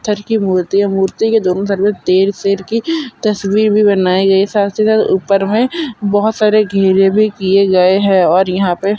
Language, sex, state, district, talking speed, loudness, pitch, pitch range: Hindi, male, Bihar, Purnia, 215 wpm, -13 LUFS, 200 Hz, 195-215 Hz